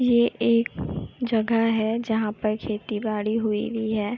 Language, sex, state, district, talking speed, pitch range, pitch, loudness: Hindi, female, Uttar Pradesh, Etah, 130 wpm, 215-230 Hz, 220 Hz, -24 LUFS